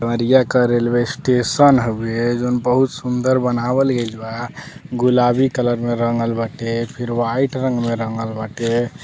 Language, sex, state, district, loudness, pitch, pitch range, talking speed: Bhojpuri, male, Uttar Pradesh, Deoria, -18 LUFS, 120 Hz, 115-130 Hz, 155 wpm